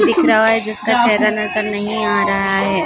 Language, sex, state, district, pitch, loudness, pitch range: Hindi, female, Maharashtra, Gondia, 215 Hz, -15 LUFS, 205-225 Hz